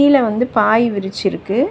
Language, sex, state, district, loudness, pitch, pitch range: Tamil, female, Tamil Nadu, Chennai, -16 LUFS, 230 Hz, 210-260 Hz